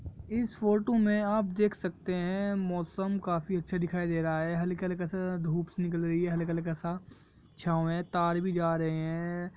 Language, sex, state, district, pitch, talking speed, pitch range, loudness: Hindi, male, Jharkhand, Sahebganj, 175 Hz, 200 wpm, 165-185 Hz, -31 LUFS